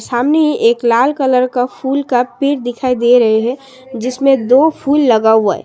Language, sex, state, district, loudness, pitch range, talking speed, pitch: Hindi, female, Assam, Sonitpur, -13 LUFS, 240-270 Hz, 190 wpm, 255 Hz